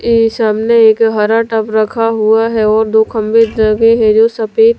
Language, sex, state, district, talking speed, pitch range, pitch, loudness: Hindi, female, Delhi, New Delhi, 185 wpm, 220-230 Hz, 225 Hz, -11 LUFS